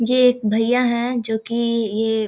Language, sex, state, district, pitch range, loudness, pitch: Maithili, female, Bihar, Samastipur, 220-245 Hz, -19 LUFS, 235 Hz